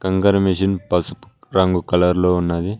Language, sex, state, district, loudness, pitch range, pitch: Telugu, male, Telangana, Mahabubabad, -18 LUFS, 90-95 Hz, 90 Hz